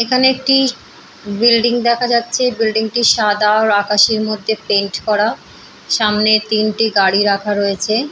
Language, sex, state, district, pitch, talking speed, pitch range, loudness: Bengali, female, West Bengal, Paschim Medinipur, 220 Hz, 135 wpm, 210-235 Hz, -14 LUFS